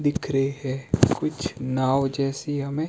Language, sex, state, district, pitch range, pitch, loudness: Hindi, male, Himachal Pradesh, Shimla, 135-145 Hz, 140 Hz, -25 LUFS